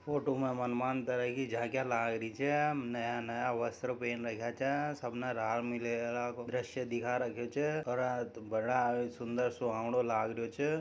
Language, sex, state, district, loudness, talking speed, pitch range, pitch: Marwari, male, Rajasthan, Nagaur, -35 LUFS, 160 wpm, 120-130 Hz, 120 Hz